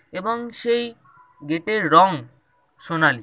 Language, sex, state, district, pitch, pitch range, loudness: Bengali, male, West Bengal, Jhargram, 175 Hz, 155-235 Hz, -20 LUFS